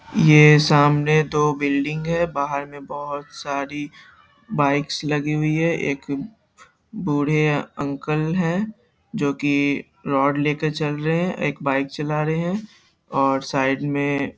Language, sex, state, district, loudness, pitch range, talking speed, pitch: Hindi, male, Bihar, Saharsa, -21 LUFS, 140-155 Hz, 140 wpm, 145 Hz